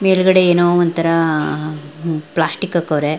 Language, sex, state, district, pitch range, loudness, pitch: Kannada, female, Karnataka, Belgaum, 155-175 Hz, -16 LUFS, 165 Hz